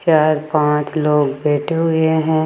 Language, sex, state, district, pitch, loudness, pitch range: Hindi, female, Rajasthan, Jaipur, 155 Hz, -16 LUFS, 150-160 Hz